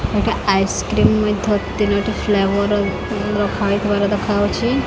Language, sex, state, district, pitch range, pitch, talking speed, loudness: Odia, female, Odisha, Khordha, 200-210 Hz, 205 Hz, 110 wpm, -18 LUFS